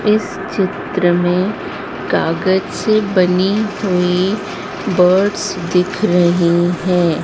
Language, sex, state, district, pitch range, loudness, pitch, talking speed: Hindi, female, Madhya Pradesh, Dhar, 180-200 Hz, -16 LUFS, 185 Hz, 90 wpm